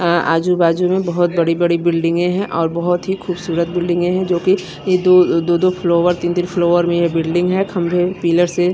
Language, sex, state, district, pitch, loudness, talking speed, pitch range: Hindi, female, Bihar, Katihar, 175 Hz, -16 LUFS, 200 wpm, 170-180 Hz